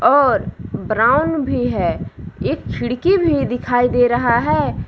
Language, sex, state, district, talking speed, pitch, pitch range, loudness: Hindi, female, Jharkhand, Palamu, 135 wpm, 245 Hz, 245-315 Hz, -17 LUFS